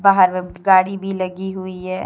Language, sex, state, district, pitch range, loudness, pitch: Hindi, female, Jharkhand, Deoghar, 185-190 Hz, -18 LUFS, 185 Hz